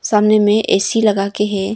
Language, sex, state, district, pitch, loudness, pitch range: Hindi, female, Arunachal Pradesh, Longding, 210 Hz, -14 LUFS, 200-215 Hz